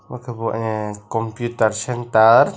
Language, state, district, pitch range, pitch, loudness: Kokborok, Tripura, West Tripura, 110-120 Hz, 115 Hz, -19 LUFS